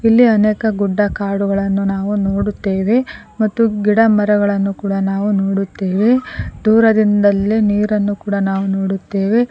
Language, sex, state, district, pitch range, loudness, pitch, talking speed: Kannada, female, Karnataka, Koppal, 195-215 Hz, -15 LUFS, 205 Hz, 105 wpm